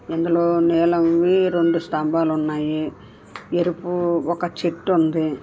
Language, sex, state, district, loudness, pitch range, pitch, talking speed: Telugu, female, Andhra Pradesh, Visakhapatnam, -20 LUFS, 160-175 Hz, 170 Hz, 100 wpm